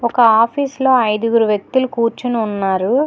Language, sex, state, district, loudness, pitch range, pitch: Telugu, female, Telangana, Hyderabad, -15 LUFS, 220-260 Hz, 230 Hz